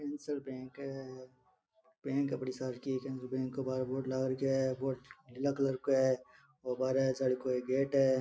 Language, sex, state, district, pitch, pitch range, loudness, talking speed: Marwari, male, Rajasthan, Nagaur, 130 Hz, 130-135 Hz, -35 LUFS, 185 wpm